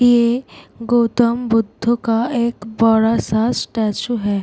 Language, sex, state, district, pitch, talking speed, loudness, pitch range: Hindi, female, Bihar, Gopalganj, 230 Hz, 135 wpm, -17 LUFS, 225-240 Hz